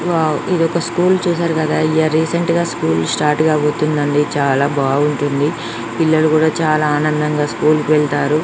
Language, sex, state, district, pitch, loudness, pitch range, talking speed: Telugu, female, Andhra Pradesh, Srikakulam, 155 Hz, -16 LUFS, 145-160 Hz, 130 wpm